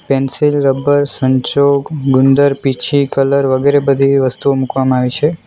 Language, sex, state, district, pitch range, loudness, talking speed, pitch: Gujarati, male, Gujarat, Valsad, 130-140 Hz, -13 LUFS, 140 wpm, 140 Hz